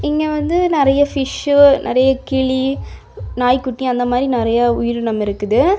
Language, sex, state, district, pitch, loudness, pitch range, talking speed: Tamil, female, Tamil Nadu, Kanyakumari, 260 Hz, -16 LUFS, 245-285 Hz, 125 wpm